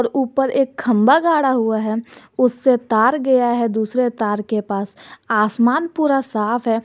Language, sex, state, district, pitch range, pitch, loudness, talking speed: Hindi, male, Jharkhand, Garhwa, 220-265 Hz, 240 Hz, -18 LUFS, 160 wpm